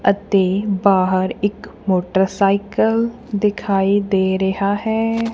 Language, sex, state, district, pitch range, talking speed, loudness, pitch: Punjabi, female, Punjab, Kapurthala, 190-210 Hz, 90 wpm, -18 LUFS, 200 Hz